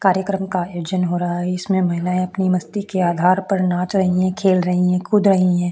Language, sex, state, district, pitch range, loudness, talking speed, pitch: Hindi, female, Chhattisgarh, Korba, 180-190 Hz, -19 LUFS, 230 wpm, 180 Hz